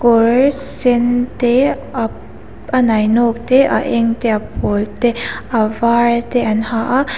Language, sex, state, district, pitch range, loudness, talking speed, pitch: Mizo, female, Mizoram, Aizawl, 230-250 Hz, -15 LUFS, 140 wpm, 235 Hz